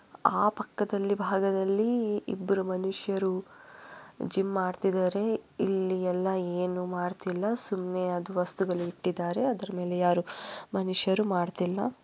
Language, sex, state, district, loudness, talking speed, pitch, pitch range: Kannada, female, Karnataka, Bellary, -30 LUFS, 110 wpm, 190 Hz, 180-205 Hz